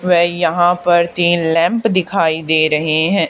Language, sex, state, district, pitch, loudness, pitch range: Hindi, female, Haryana, Charkhi Dadri, 170 Hz, -14 LUFS, 160-180 Hz